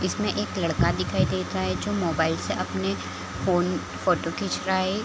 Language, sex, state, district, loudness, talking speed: Hindi, female, Chhattisgarh, Raigarh, -26 LUFS, 200 wpm